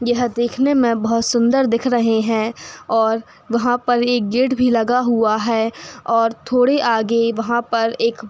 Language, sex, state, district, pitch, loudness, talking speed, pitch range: Hindi, female, Uttar Pradesh, Hamirpur, 235 Hz, -17 LUFS, 175 wpm, 225-245 Hz